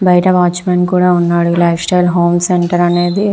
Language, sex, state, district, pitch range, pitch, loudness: Telugu, female, Andhra Pradesh, Visakhapatnam, 175-180 Hz, 175 Hz, -12 LUFS